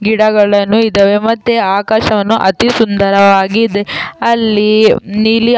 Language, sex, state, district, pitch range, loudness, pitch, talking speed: Kannada, female, Karnataka, Chamarajanagar, 205-225 Hz, -10 LUFS, 215 Hz, 95 wpm